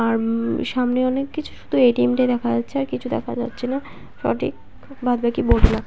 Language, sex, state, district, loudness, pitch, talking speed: Bengali, female, West Bengal, Paschim Medinipur, -21 LUFS, 240 Hz, 195 wpm